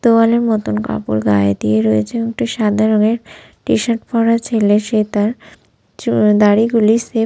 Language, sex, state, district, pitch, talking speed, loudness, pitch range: Bengali, female, West Bengal, Malda, 215 Hz, 155 wpm, -15 LUFS, 205-230 Hz